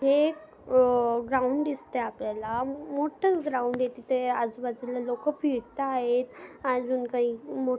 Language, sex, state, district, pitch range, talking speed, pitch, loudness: Marathi, male, Maharashtra, Dhule, 245-280 Hz, 130 wpm, 255 Hz, -28 LUFS